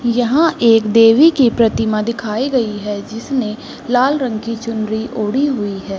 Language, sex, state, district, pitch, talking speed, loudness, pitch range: Hindi, female, Uttar Pradesh, Hamirpur, 230 Hz, 160 wpm, -15 LUFS, 220-255 Hz